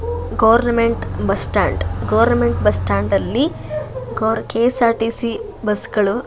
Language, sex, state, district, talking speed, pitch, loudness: Kannada, female, Karnataka, Shimoga, 105 wpm, 205 Hz, -18 LUFS